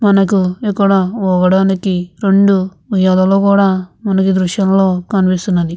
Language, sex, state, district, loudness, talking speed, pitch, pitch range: Telugu, female, Andhra Pradesh, Visakhapatnam, -13 LUFS, 95 wpm, 190 Hz, 185-195 Hz